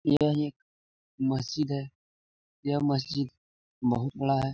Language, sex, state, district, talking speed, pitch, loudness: Hindi, male, Bihar, Jamui, 120 wpm, 135 Hz, -30 LUFS